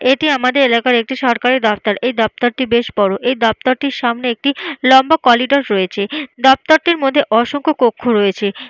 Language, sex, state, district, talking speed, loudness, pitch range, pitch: Bengali, female, Jharkhand, Jamtara, 150 wpm, -14 LUFS, 230-275 Hz, 250 Hz